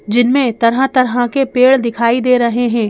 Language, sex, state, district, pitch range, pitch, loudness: Hindi, female, Madhya Pradesh, Bhopal, 235-255 Hz, 245 Hz, -13 LUFS